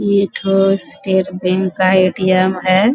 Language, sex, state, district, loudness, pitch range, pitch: Hindi, female, Bihar, Bhagalpur, -15 LUFS, 185-195 Hz, 190 Hz